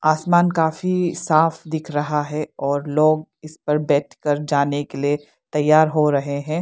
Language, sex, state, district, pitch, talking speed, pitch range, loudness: Hindi, female, Arunachal Pradesh, Lower Dibang Valley, 155 Hz, 165 wpm, 145-160 Hz, -20 LUFS